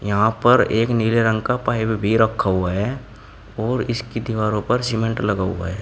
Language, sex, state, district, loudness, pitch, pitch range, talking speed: Hindi, male, Uttar Pradesh, Shamli, -20 LUFS, 110 Hz, 105-115 Hz, 195 wpm